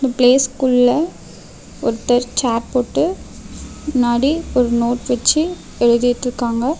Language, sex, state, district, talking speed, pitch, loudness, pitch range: Tamil, female, Tamil Nadu, Namakkal, 90 wpm, 250 Hz, -17 LUFS, 240-270 Hz